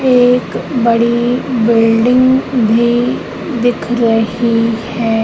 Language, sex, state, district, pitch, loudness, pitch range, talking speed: Hindi, female, Madhya Pradesh, Katni, 235 Hz, -13 LUFS, 230-245 Hz, 80 wpm